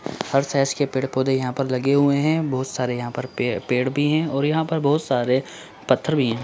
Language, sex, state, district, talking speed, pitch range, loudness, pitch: Hindi, male, Chhattisgarh, Bilaspur, 235 wpm, 130-145 Hz, -22 LUFS, 135 Hz